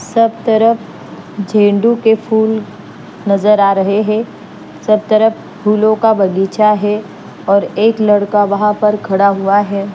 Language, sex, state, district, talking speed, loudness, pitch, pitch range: Hindi, female, Punjab, Fazilka, 135 wpm, -12 LUFS, 210 Hz, 200-220 Hz